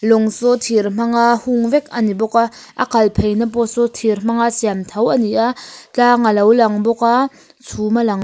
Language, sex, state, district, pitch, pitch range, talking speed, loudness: Mizo, female, Mizoram, Aizawl, 230 Hz, 220-235 Hz, 220 wpm, -16 LUFS